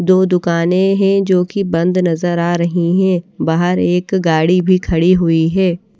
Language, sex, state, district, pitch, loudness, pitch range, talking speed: Hindi, female, Odisha, Nuapada, 180 Hz, -14 LUFS, 170-185 Hz, 170 wpm